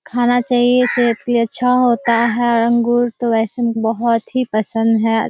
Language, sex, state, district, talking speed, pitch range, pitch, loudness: Hindi, female, Bihar, Kishanganj, 190 wpm, 230-245 Hz, 235 Hz, -15 LUFS